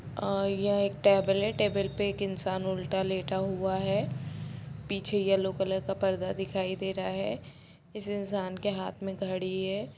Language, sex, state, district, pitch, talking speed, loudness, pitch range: Hindi, female, Bihar, Sitamarhi, 190 Hz, 170 wpm, -31 LUFS, 185-200 Hz